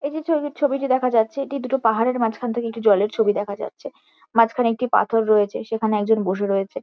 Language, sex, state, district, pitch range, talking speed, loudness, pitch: Bengali, female, West Bengal, Kolkata, 215-265 Hz, 210 wpm, -21 LUFS, 230 Hz